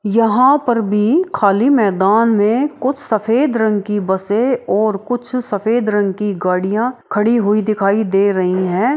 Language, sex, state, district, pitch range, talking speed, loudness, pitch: Maithili, female, Bihar, Araria, 200-245 Hz, 155 wpm, -15 LUFS, 215 Hz